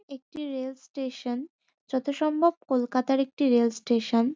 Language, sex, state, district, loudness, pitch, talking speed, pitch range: Bengali, female, West Bengal, North 24 Parganas, -27 LUFS, 265 Hz, 140 wpm, 245-285 Hz